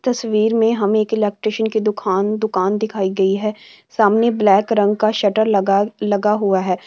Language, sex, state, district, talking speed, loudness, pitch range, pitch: Marwari, female, Rajasthan, Churu, 165 wpm, -17 LUFS, 200-220 Hz, 210 Hz